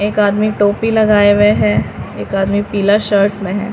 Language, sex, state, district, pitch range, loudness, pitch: Hindi, female, Bihar, Patna, 200-210 Hz, -13 LUFS, 205 Hz